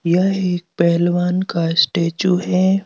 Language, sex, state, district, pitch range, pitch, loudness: Hindi, male, Madhya Pradesh, Bhopal, 170-185 Hz, 180 Hz, -17 LUFS